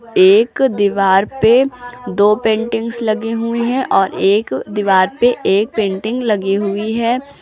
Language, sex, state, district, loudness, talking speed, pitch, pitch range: Hindi, female, Uttar Pradesh, Lucknow, -15 LUFS, 140 wpm, 225 Hz, 205-245 Hz